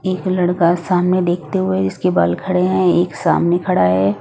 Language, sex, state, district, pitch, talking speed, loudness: Hindi, female, Odisha, Nuapada, 175 Hz, 185 wpm, -16 LUFS